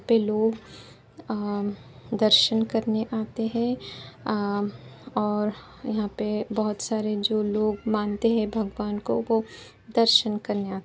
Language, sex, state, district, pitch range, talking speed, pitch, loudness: Hindi, female, Uttar Pradesh, Etah, 210-225 Hz, 135 wpm, 215 Hz, -25 LUFS